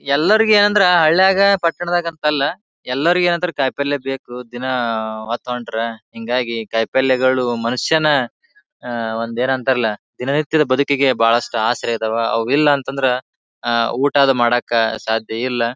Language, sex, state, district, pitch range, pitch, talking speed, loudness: Kannada, male, Karnataka, Bijapur, 115-150 Hz, 130 Hz, 115 wpm, -17 LUFS